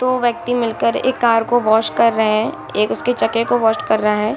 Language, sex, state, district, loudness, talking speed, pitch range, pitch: Hindi, female, Bihar, Saran, -16 LUFS, 275 wpm, 220-245 Hz, 230 Hz